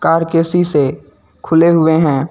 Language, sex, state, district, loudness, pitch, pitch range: Hindi, male, Uttar Pradesh, Lucknow, -13 LUFS, 160 Hz, 140-165 Hz